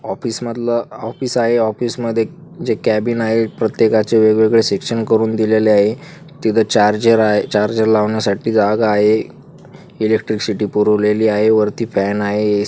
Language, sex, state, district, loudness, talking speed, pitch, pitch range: Marathi, female, Maharashtra, Chandrapur, -15 LUFS, 135 wpm, 110 Hz, 105-115 Hz